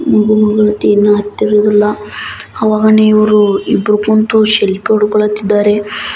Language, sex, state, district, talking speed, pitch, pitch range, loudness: Kannada, male, Karnataka, Belgaum, 90 wpm, 210 Hz, 210-215 Hz, -11 LUFS